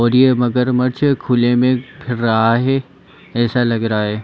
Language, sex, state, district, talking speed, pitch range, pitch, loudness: Hindi, female, Chhattisgarh, Bilaspur, 170 wpm, 115-130 Hz, 125 Hz, -16 LUFS